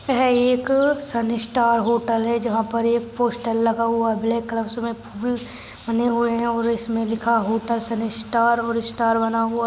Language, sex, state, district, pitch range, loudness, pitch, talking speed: Hindi, female, Maharashtra, Nagpur, 230-235 Hz, -21 LUFS, 230 Hz, 185 wpm